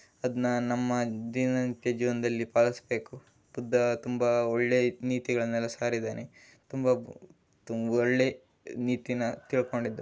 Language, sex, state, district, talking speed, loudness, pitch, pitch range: Kannada, male, Karnataka, Raichur, 90 wpm, -29 LUFS, 120 Hz, 120-125 Hz